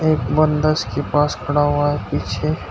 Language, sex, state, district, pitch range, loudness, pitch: Hindi, male, Uttar Pradesh, Shamli, 145-155 Hz, -19 LUFS, 145 Hz